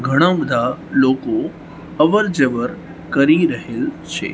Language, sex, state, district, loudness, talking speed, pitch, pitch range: Gujarati, male, Gujarat, Gandhinagar, -17 LUFS, 95 wpm, 155 Hz, 135-170 Hz